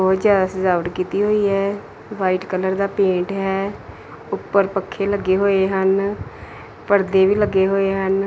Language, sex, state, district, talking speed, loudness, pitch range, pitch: Punjabi, female, Punjab, Pathankot, 150 wpm, -19 LUFS, 185-200 Hz, 195 Hz